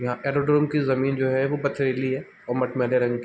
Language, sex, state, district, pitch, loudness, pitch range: Hindi, male, Bihar, East Champaran, 130 Hz, -24 LUFS, 125-140 Hz